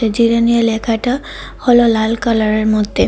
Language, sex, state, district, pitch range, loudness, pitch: Bengali, female, Tripura, West Tripura, 220-235 Hz, -14 LUFS, 230 Hz